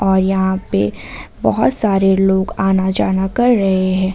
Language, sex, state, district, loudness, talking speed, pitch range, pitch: Hindi, female, Jharkhand, Ranchi, -15 LUFS, 160 wpm, 190-195 Hz, 190 Hz